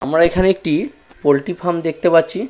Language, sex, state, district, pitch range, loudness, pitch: Bengali, male, West Bengal, Purulia, 160-190 Hz, -17 LUFS, 175 Hz